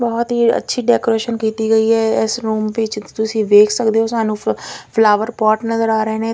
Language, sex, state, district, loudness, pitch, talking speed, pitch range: Punjabi, female, Punjab, Fazilka, -16 LUFS, 225 Hz, 210 wpm, 220-230 Hz